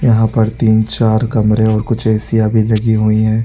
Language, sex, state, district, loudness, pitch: Hindi, male, Chhattisgarh, Raigarh, -13 LUFS, 110 Hz